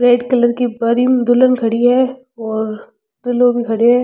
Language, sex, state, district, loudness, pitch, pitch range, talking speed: Rajasthani, female, Rajasthan, Churu, -14 LUFS, 245 Hz, 235-255 Hz, 180 wpm